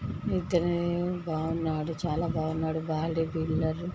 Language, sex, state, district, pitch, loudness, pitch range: Telugu, female, Telangana, Nalgonda, 165 Hz, -30 LUFS, 160-175 Hz